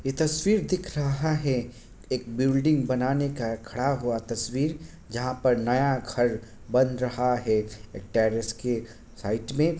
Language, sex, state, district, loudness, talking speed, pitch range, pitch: Hindi, male, Bihar, Kishanganj, -27 LUFS, 145 wpm, 115-140 Hz, 125 Hz